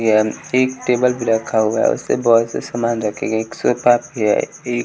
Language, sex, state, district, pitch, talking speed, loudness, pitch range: Hindi, male, Bihar, West Champaran, 115 Hz, 210 wpm, -18 LUFS, 110-120 Hz